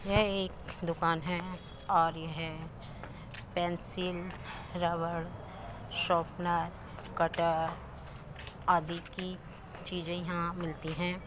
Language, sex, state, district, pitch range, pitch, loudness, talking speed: Hindi, female, Uttar Pradesh, Muzaffarnagar, 160-180 Hz, 170 Hz, -34 LUFS, 85 wpm